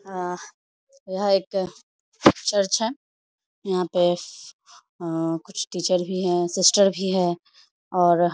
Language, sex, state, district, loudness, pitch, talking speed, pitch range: Hindi, female, Bihar, Samastipur, -23 LUFS, 185 Hz, 120 wpm, 175-195 Hz